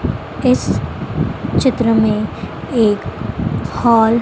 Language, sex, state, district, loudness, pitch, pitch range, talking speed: Hindi, female, Madhya Pradesh, Dhar, -17 LUFS, 225 Hz, 215-235 Hz, 85 wpm